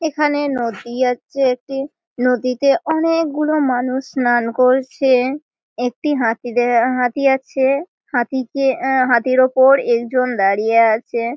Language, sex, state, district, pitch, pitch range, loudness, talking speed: Bengali, female, West Bengal, Malda, 255 Hz, 245-275 Hz, -17 LUFS, 90 wpm